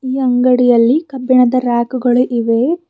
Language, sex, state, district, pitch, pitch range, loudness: Kannada, female, Karnataka, Bidar, 250 Hz, 245-260 Hz, -13 LUFS